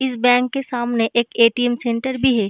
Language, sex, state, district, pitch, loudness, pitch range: Hindi, female, Uttar Pradesh, Hamirpur, 245 Hz, -18 LUFS, 235-255 Hz